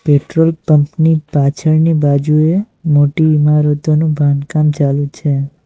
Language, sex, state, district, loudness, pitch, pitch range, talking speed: Gujarati, male, Gujarat, Valsad, -13 LUFS, 150 Hz, 145-160 Hz, 105 wpm